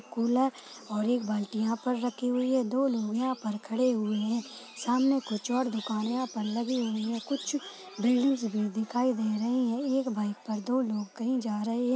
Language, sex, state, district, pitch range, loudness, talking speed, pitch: Hindi, female, Uttar Pradesh, Budaun, 220-255 Hz, -30 LUFS, 205 wpm, 240 Hz